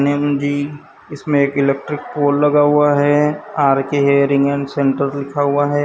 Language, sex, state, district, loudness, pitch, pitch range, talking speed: Hindi, male, Maharashtra, Gondia, -16 LUFS, 145 Hz, 140-145 Hz, 165 wpm